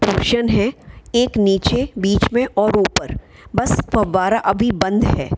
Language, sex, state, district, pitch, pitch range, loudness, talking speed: Hindi, female, Bihar, Kishanganj, 215 Hz, 200-240 Hz, -17 LUFS, 135 wpm